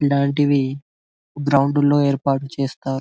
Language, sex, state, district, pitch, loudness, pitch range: Telugu, male, Telangana, Karimnagar, 140 Hz, -19 LUFS, 135-145 Hz